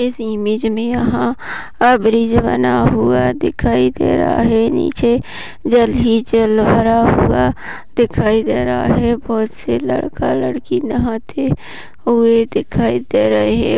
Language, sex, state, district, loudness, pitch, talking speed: Hindi, female, Maharashtra, Sindhudurg, -15 LUFS, 225 Hz, 130 wpm